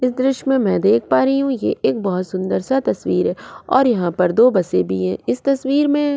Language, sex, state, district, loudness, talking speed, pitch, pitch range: Hindi, female, Goa, North and South Goa, -18 LUFS, 255 wpm, 250 Hz, 180-270 Hz